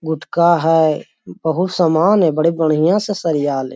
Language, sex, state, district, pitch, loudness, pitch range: Magahi, male, Bihar, Lakhisarai, 160 Hz, -16 LUFS, 155-170 Hz